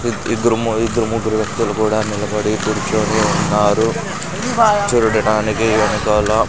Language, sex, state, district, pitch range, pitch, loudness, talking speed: Telugu, male, Andhra Pradesh, Sri Satya Sai, 110-120 Hz, 110 Hz, -16 LUFS, 110 wpm